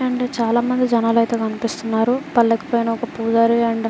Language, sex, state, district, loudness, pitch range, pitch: Telugu, female, Andhra Pradesh, Srikakulam, -19 LUFS, 230-240 Hz, 230 Hz